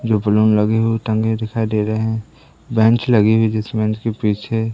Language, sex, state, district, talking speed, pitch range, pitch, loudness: Hindi, male, Madhya Pradesh, Katni, 215 wpm, 110-115 Hz, 110 Hz, -17 LUFS